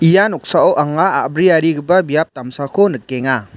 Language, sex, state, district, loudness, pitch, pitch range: Garo, male, Meghalaya, West Garo Hills, -15 LUFS, 155 Hz, 130-185 Hz